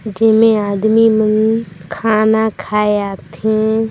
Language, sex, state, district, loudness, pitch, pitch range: Hindi, female, Chhattisgarh, Sarguja, -14 LUFS, 215 Hz, 210-220 Hz